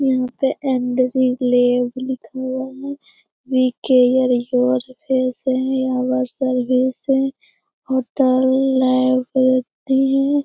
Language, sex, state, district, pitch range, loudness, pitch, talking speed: Hindi, female, Bihar, Jamui, 255-265 Hz, -18 LUFS, 260 Hz, 90 wpm